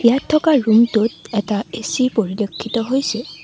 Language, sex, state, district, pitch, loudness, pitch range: Assamese, female, Assam, Sonitpur, 230 Hz, -18 LUFS, 215-255 Hz